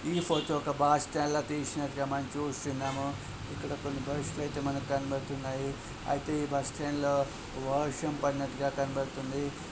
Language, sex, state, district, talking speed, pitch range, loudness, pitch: Telugu, male, Andhra Pradesh, Srikakulam, 135 wpm, 135-145 Hz, -33 LUFS, 140 Hz